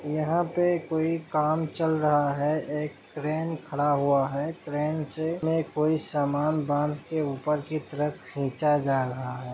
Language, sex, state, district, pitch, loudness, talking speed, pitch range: Hindi, male, Jharkhand, Sahebganj, 150 Hz, -27 LUFS, 155 wpm, 145-160 Hz